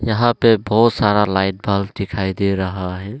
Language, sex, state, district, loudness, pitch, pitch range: Hindi, male, Arunachal Pradesh, Longding, -17 LUFS, 100 Hz, 95-110 Hz